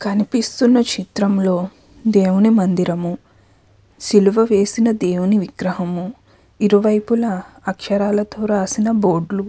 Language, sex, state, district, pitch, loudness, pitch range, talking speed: Telugu, female, Andhra Pradesh, Krishna, 200 Hz, -17 LUFS, 185-215 Hz, 80 wpm